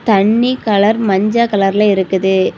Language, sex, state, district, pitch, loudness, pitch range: Tamil, female, Tamil Nadu, Kanyakumari, 205 Hz, -13 LUFS, 195-225 Hz